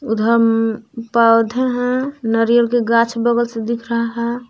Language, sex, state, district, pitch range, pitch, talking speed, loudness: Hindi, female, Jharkhand, Palamu, 230-240 Hz, 235 Hz, 145 wpm, -16 LUFS